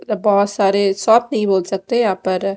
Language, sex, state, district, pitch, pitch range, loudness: Hindi, female, Odisha, Malkangiri, 200 Hz, 195-220 Hz, -16 LUFS